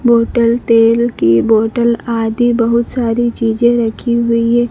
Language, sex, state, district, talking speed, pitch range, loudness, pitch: Hindi, female, Madhya Pradesh, Dhar, 140 wpm, 230-240 Hz, -13 LUFS, 235 Hz